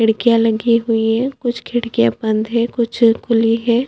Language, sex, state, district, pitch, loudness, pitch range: Hindi, female, Chhattisgarh, Bastar, 230 Hz, -16 LUFS, 225-235 Hz